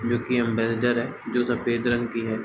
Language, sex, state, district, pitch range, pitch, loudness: Hindi, male, Uttar Pradesh, Varanasi, 115-120 Hz, 120 Hz, -25 LUFS